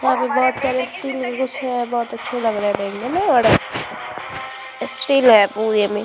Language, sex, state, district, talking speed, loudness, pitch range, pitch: Hindi, female, Bihar, Vaishali, 130 wpm, -19 LUFS, 210-260 Hz, 245 Hz